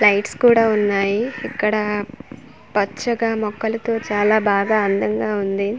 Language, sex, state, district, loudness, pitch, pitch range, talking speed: Telugu, female, Andhra Pradesh, Manyam, -19 LUFS, 215 Hz, 205-230 Hz, 105 wpm